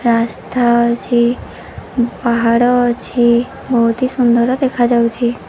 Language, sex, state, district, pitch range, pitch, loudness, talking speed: Odia, female, Odisha, Sambalpur, 235-245 Hz, 240 Hz, -14 LUFS, 85 wpm